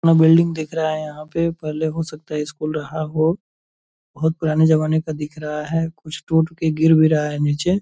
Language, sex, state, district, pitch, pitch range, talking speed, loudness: Hindi, male, Bihar, Purnia, 155 Hz, 155-160 Hz, 230 wpm, -20 LUFS